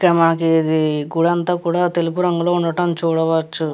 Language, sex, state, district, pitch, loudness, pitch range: Telugu, female, Andhra Pradesh, Chittoor, 165 Hz, -18 LUFS, 160-175 Hz